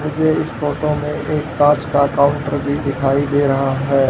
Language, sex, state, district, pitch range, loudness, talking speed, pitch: Hindi, male, Haryana, Rohtak, 140-150 Hz, -17 LUFS, 190 wpm, 145 Hz